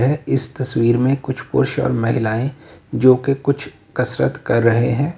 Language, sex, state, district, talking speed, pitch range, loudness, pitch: Hindi, male, Uttar Pradesh, Lalitpur, 175 wpm, 115-140 Hz, -18 LUFS, 130 Hz